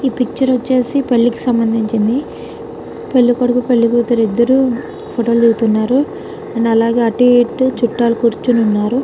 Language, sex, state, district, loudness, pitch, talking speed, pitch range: Telugu, female, Telangana, Karimnagar, -14 LUFS, 240 Hz, 105 wpm, 230-255 Hz